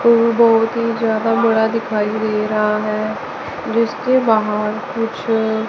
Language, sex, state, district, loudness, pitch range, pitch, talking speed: Hindi, male, Chandigarh, Chandigarh, -17 LUFS, 215-230 Hz, 225 Hz, 125 wpm